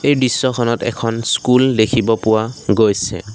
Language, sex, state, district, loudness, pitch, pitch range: Assamese, male, Assam, Sonitpur, -16 LUFS, 115 Hz, 110-125 Hz